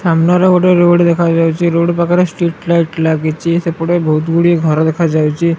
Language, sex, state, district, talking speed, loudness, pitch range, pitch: Odia, male, Odisha, Malkangiri, 160 wpm, -12 LUFS, 165-175 Hz, 170 Hz